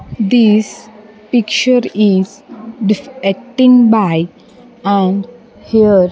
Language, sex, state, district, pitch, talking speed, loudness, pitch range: English, female, Andhra Pradesh, Sri Satya Sai, 220 Hz, 80 wpm, -13 LUFS, 200-245 Hz